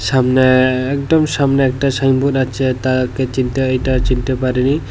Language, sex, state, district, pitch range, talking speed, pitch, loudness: Bengali, male, Tripura, West Tripura, 130-135 Hz, 135 wpm, 130 Hz, -15 LUFS